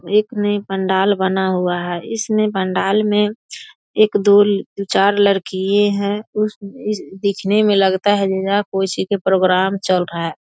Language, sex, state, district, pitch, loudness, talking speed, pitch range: Hindi, female, Bihar, Saharsa, 200 Hz, -17 LUFS, 145 wpm, 190-205 Hz